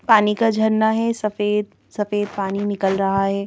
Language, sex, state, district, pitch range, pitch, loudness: Hindi, female, Madhya Pradesh, Bhopal, 200-220 Hz, 210 Hz, -20 LUFS